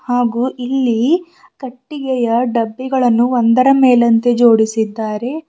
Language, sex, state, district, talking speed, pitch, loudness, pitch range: Kannada, female, Karnataka, Bidar, 75 wpm, 245 Hz, -14 LUFS, 230-265 Hz